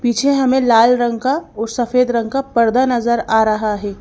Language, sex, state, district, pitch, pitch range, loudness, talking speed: Hindi, female, Madhya Pradesh, Bhopal, 240 Hz, 225-260 Hz, -15 LUFS, 210 wpm